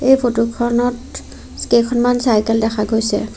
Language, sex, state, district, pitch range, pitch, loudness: Assamese, female, Assam, Sonitpur, 225-245 Hz, 240 Hz, -16 LUFS